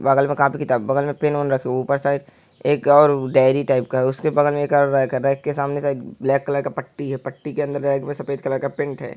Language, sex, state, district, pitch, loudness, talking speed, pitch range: Hindi, male, Uttar Pradesh, Hamirpur, 140 Hz, -20 LUFS, 295 wpm, 135-145 Hz